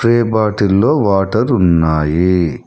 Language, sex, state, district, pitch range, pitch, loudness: Telugu, male, Telangana, Hyderabad, 85-110 Hz, 100 Hz, -13 LUFS